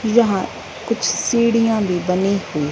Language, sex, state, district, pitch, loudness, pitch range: Hindi, female, Punjab, Fazilka, 200 Hz, -18 LUFS, 185-230 Hz